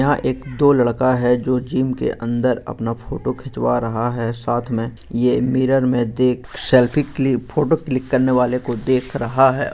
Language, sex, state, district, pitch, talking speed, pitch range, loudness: Hindi, male, Jharkhand, Sahebganj, 125 Hz, 185 wpm, 120-130 Hz, -19 LUFS